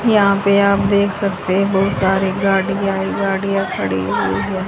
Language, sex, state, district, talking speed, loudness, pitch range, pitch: Hindi, female, Haryana, Charkhi Dadri, 165 wpm, -17 LUFS, 190-200 Hz, 195 Hz